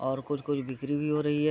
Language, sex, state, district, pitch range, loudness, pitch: Hindi, male, Bihar, Sitamarhi, 135-150 Hz, -30 LUFS, 145 Hz